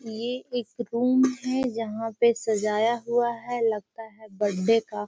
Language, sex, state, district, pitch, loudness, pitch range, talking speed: Hindi, female, Bihar, Gaya, 230 Hz, -26 LUFS, 220-240 Hz, 165 wpm